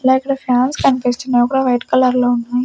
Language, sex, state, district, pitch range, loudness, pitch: Telugu, female, Andhra Pradesh, Sri Satya Sai, 245-260 Hz, -15 LUFS, 250 Hz